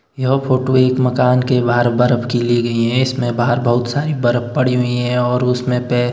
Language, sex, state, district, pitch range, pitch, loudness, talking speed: Hindi, male, Himachal Pradesh, Shimla, 120-130 Hz, 125 Hz, -16 LUFS, 215 wpm